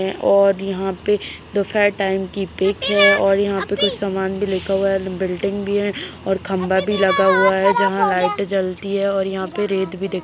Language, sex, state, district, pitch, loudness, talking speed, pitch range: Hindi, male, Chhattisgarh, Kabirdham, 195 Hz, -19 LUFS, 205 wpm, 190-200 Hz